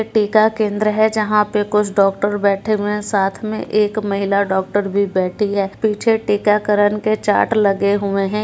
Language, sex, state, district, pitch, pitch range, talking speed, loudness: Hindi, female, Bihar, Muzaffarpur, 210 Hz, 200-215 Hz, 175 wpm, -17 LUFS